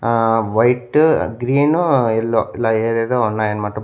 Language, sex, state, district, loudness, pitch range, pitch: Telugu, male, Andhra Pradesh, Annamaya, -17 LUFS, 110-125 Hz, 115 Hz